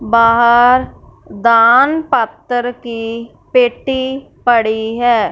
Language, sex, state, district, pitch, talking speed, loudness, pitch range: Hindi, female, Punjab, Fazilka, 240 Hz, 80 wpm, -13 LUFS, 230-255 Hz